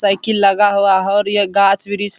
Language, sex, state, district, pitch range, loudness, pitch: Hindi, male, Bihar, Supaul, 195-205 Hz, -14 LUFS, 200 Hz